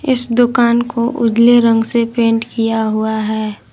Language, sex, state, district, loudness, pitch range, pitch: Hindi, female, Jharkhand, Garhwa, -13 LUFS, 225-240 Hz, 230 Hz